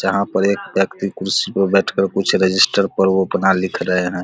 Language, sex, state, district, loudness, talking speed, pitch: Hindi, male, Bihar, Vaishali, -17 LUFS, 210 wpm, 95 Hz